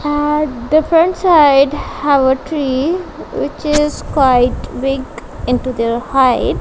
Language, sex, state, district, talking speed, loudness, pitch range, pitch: English, female, Punjab, Kapurthala, 120 wpm, -14 LUFS, 260-300 Hz, 285 Hz